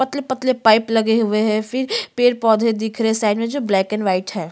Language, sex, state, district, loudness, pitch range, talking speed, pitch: Hindi, female, Chhattisgarh, Sukma, -18 LUFS, 215-245 Hz, 250 wpm, 225 Hz